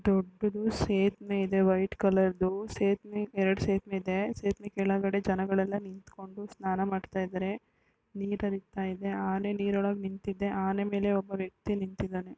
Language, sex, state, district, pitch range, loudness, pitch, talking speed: Kannada, female, Karnataka, Dakshina Kannada, 190-200 Hz, -31 LUFS, 195 Hz, 130 wpm